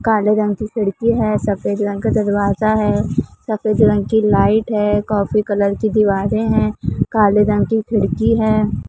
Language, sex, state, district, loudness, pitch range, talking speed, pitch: Hindi, female, Maharashtra, Mumbai Suburban, -16 LUFS, 205-215 Hz, 170 wpm, 210 Hz